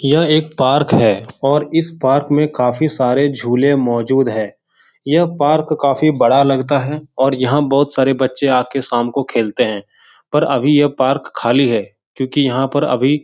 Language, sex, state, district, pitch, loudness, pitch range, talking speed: Hindi, male, Bihar, Jahanabad, 140 Hz, -15 LUFS, 130-150 Hz, 185 wpm